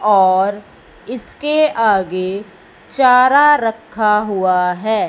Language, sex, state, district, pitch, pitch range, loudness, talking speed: Hindi, male, Punjab, Fazilka, 215 Hz, 195-250 Hz, -14 LUFS, 80 wpm